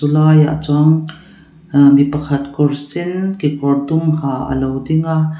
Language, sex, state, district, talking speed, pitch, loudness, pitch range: Mizo, female, Mizoram, Aizawl, 145 wpm, 150 Hz, -15 LUFS, 140-160 Hz